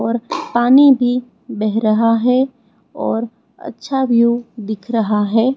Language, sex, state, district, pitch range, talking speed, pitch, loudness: Hindi, female, Chhattisgarh, Raipur, 225-245 Hz, 130 wpm, 235 Hz, -16 LUFS